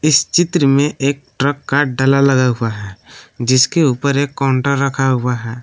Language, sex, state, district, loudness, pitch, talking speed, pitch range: Hindi, male, Jharkhand, Palamu, -15 LUFS, 135 Hz, 180 wpm, 125-140 Hz